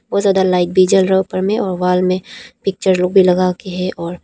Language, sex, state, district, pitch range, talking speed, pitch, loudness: Hindi, female, Arunachal Pradesh, Papum Pare, 180-190 Hz, 255 wpm, 185 Hz, -15 LUFS